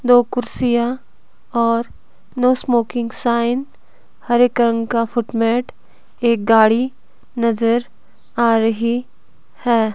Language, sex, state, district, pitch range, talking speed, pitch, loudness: Hindi, female, Himachal Pradesh, Shimla, 230-245 Hz, 110 wpm, 235 Hz, -18 LUFS